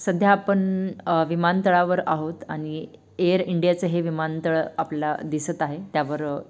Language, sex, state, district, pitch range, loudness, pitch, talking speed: Marathi, female, Maharashtra, Dhule, 155-185 Hz, -23 LUFS, 170 Hz, 130 wpm